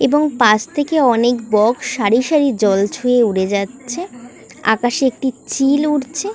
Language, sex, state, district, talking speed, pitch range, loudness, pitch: Bengali, female, West Bengal, Kolkata, 140 wpm, 220-285 Hz, -16 LUFS, 250 Hz